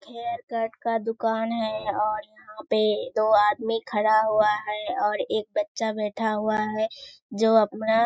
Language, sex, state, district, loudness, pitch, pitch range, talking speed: Hindi, female, Bihar, Kishanganj, -25 LUFS, 220 Hz, 215-230 Hz, 60 wpm